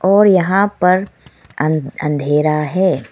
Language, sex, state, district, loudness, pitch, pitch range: Hindi, female, Arunachal Pradesh, Lower Dibang Valley, -15 LUFS, 175 Hz, 150-190 Hz